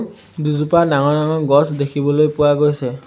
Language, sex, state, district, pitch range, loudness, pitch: Assamese, male, Assam, Sonitpur, 145-155 Hz, -16 LUFS, 150 Hz